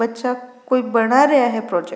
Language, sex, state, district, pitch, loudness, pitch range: Rajasthani, female, Rajasthan, Nagaur, 250 Hz, -17 LUFS, 230-255 Hz